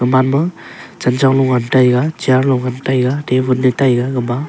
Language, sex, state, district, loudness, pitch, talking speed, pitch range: Wancho, male, Arunachal Pradesh, Longding, -14 LUFS, 130 Hz, 120 wpm, 125-135 Hz